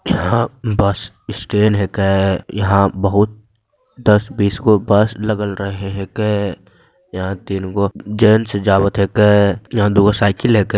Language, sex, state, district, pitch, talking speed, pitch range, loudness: Angika, male, Bihar, Begusarai, 100 Hz, 155 wpm, 100-105 Hz, -16 LUFS